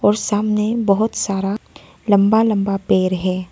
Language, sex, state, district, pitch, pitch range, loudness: Hindi, female, Arunachal Pradesh, Lower Dibang Valley, 205 Hz, 195-215 Hz, -17 LUFS